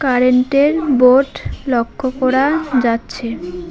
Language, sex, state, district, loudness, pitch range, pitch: Bengali, female, West Bengal, Alipurduar, -15 LUFS, 240-275 Hz, 255 Hz